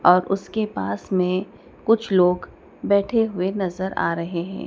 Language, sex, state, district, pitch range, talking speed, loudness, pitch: Hindi, female, Madhya Pradesh, Dhar, 180-200 Hz, 165 wpm, -22 LUFS, 185 Hz